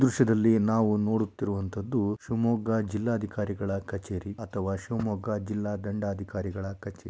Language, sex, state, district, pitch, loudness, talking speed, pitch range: Kannada, male, Karnataka, Shimoga, 105 Hz, -29 LUFS, 85 wpm, 100-110 Hz